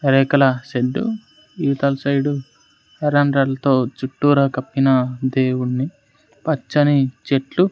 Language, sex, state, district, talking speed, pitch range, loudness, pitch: Telugu, male, Andhra Pradesh, Sri Satya Sai, 80 wpm, 130-145 Hz, -19 LUFS, 135 Hz